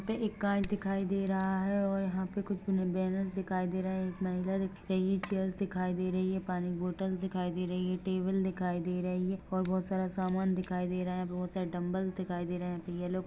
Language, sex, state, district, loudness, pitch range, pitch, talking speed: Hindi, female, Jharkhand, Sahebganj, -34 LUFS, 180-190 Hz, 185 Hz, 250 wpm